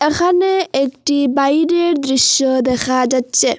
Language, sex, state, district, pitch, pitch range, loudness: Bengali, female, Assam, Hailakandi, 275 Hz, 260-335 Hz, -15 LUFS